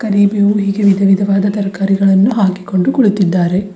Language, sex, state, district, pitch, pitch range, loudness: Kannada, female, Karnataka, Bidar, 195 Hz, 195-205 Hz, -13 LUFS